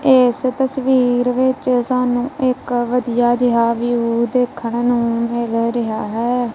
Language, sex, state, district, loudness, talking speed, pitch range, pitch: Punjabi, female, Punjab, Kapurthala, -17 LUFS, 120 wpm, 235-250 Hz, 245 Hz